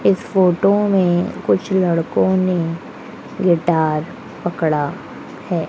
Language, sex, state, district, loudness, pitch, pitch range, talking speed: Hindi, female, Madhya Pradesh, Dhar, -18 LUFS, 175 Hz, 165-190 Hz, 95 wpm